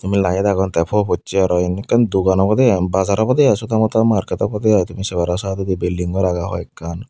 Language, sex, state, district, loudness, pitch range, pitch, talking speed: Chakma, female, Tripura, Unakoti, -17 LUFS, 90-105 Hz, 95 Hz, 220 wpm